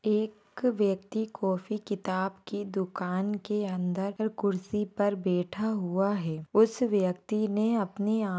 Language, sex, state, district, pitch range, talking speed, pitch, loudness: Hindi, female, Maharashtra, Nagpur, 190-215 Hz, 130 wpm, 205 Hz, -30 LUFS